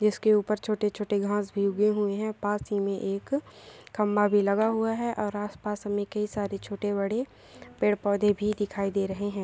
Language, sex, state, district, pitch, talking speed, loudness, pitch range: Hindi, female, Telangana, Nalgonda, 205 Hz, 190 wpm, -28 LUFS, 200-210 Hz